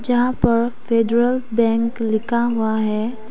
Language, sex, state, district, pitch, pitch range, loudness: Hindi, female, Arunachal Pradesh, Papum Pare, 230 Hz, 225-240 Hz, -19 LUFS